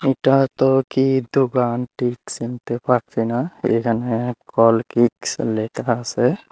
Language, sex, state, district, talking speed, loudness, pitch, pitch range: Bengali, male, Tripura, Unakoti, 110 wpm, -20 LUFS, 125 Hz, 115-135 Hz